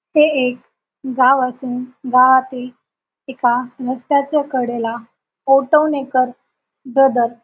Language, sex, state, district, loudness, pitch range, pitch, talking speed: Marathi, female, Maharashtra, Sindhudurg, -16 LUFS, 250-270 Hz, 255 Hz, 90 wpm